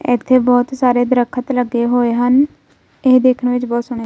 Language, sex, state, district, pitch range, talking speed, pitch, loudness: Punjabi, female, Punjab, Kapurthala, 245-255 Hz, 190 wpm, 245 Hz, -15 LUFS